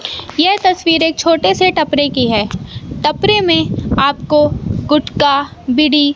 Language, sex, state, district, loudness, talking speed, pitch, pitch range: Hindi, male, Madhya Pradesh, Katni, -13 LUFS, 125 wpm, 300 Hz, 280-330 Hz